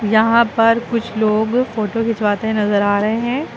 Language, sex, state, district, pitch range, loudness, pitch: Hindi, female, Uttar Pradesh, Lucknow, 215-230 Hz, -16 LUFS, 220 Hz